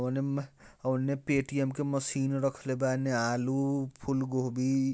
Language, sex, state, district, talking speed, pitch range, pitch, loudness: Bajjika, male, Bihar, Vaishali, 120 wpm, 130-140 Hz, 135 Hz, -31 LUFS